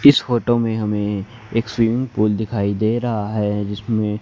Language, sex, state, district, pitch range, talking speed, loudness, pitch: Hindi, male, Haryana, Charkhi Dadri, 105-115 Hz, 170 wpm, -20 LUFS, 110 Hz